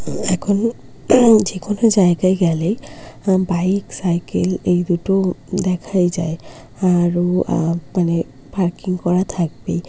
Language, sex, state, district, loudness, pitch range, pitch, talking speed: Bengali, female, West Bengal, North 24 Parganas, -18 LUFS, 175-195 Hz, 180 Hz, 95 wpm